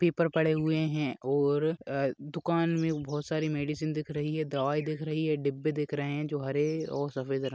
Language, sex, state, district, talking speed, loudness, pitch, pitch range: Hindi, male, Rajasthan, Churu, 215 wpm, -31 LUFS, 150 Hz, 145-155 Hz